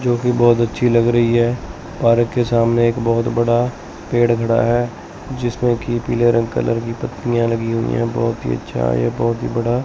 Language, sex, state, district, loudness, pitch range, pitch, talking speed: Hindi, male, Chandigarh, Chandigarh, -17 LUFS, 115-120 Hz, 115 Hz, 200 wpm